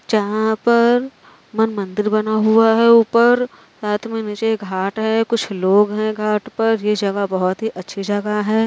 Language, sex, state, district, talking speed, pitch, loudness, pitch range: Hindi, female, Uttar Pradesh, Varanasi, 175 wpm, 215 Hz, -17 LUFS, 205-225 Hz